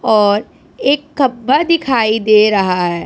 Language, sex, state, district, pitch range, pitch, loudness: Hindi, female, Punjab, Pathankot, 205-275 Hz, 220 Hz, -13 LUFS